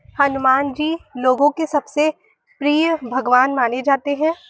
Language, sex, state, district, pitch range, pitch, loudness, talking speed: Hindi, female, Uttar Pradesh, Varanasi, 260-310 Hz, 285 Hz, -18 LUFS, 135 wpm